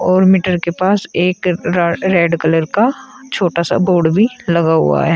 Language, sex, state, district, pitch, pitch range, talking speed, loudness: Hindi, female, Uttar Pradesh, Shamli, 180 Hz, 170-190 Hz, 185 wpm, -14 LUFS